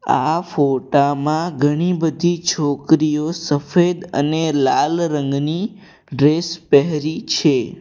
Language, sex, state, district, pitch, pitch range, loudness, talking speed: Gujarati, male, Gujarat, Valsad, 155 Hz, 145-170 Hz, -18 LUFS, 100 wpm